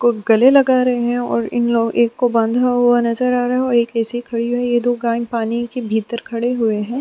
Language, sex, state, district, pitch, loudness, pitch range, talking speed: Hindi, female, Chhattisgarh, Sukma, 240 Hz, -17 LUFS, 230-245 Hz, 255 wpm